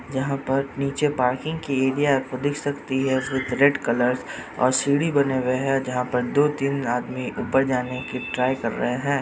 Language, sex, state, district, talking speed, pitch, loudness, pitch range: Hindi, male, Jharkhand, Jamtara, 195 wpm, 135 Hz, -23 LUFS, 125-140 Hz